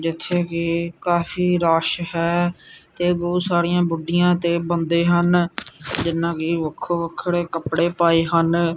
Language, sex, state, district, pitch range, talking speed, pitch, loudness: Punjabi, male, Punjab, Kapurthala, 165-175 Hz, 130 wpm, 170 Hz, -20 LUFS